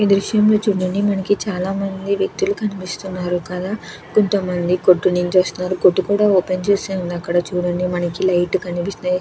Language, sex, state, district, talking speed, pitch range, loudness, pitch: Telugu, female, Andhra Pradesh, Krishna, 165 wpm, 180-200 Hz, -19 LUFS, 185 Hz